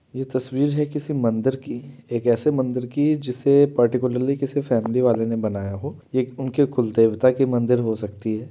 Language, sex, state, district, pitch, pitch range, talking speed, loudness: Hindi, male, Uttar Pradesh, Varanasi, 125 Hz, 120-140 Hz, 190 wpm, -22 LUFS